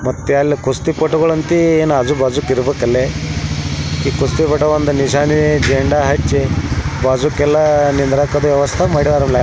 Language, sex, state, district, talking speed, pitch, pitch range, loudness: Kannada, male, Karnataka, Belgaum, 85 wpm, 145 Hz, 130-150 Hz, -14 LUFS